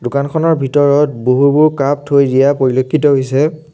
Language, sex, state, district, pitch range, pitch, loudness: Assamese, male, Assam, Sonitpur, 135-150 Hz, 140 Hz, -12 LUFS